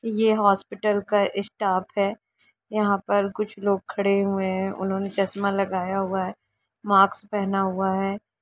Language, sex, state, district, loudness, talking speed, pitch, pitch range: Hindi, female, Jharkhand, Sahebganj, -24 LUFS, 150 wpm, 200 Hz, 195-205 Hz